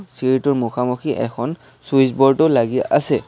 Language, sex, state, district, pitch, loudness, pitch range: Assamese, male, Assam, Sonitpur, 130 Hz, -18 LUFS, 125-140 Hz